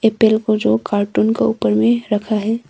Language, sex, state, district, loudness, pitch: Hindi, female, Arunachal Pradesh, Longding, -17 LUFS, 210 Hz